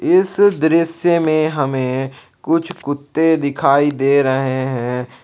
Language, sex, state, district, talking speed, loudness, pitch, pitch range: Hindi, male, Jharkhand, Palamu, 115 wpm, -16 LUFS, 145 Hz, 135-165 Hz